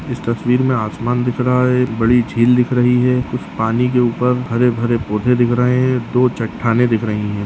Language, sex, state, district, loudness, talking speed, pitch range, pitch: Hindi, male, Bihar, Jahanabad, -16 LUFS, 215 wpm, 115-125 Hz, 125 Hz